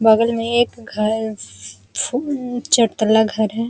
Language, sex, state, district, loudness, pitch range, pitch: Hindi, female, Uttar Pradesh, Jalaun, -18 LUFS, 215-240 Hz, 220 Hz